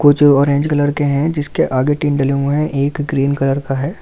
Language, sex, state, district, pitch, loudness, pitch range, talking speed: Hindi, male, Delhi, New Delhi, 145 Hz, -15 LUFS, 140-145 Hz, 300 wpm